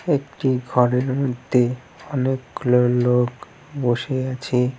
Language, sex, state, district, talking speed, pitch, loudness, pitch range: Bengali, male, West Bengal, Cooch Behar, 90 wpm, 125 Hz, -21 LUFS, 125-130 Hz